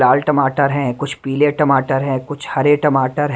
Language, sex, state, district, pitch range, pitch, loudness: Hindi, male, Delhi, New Delhi, 135-145 Hz, 140 Hz, -16 LUFS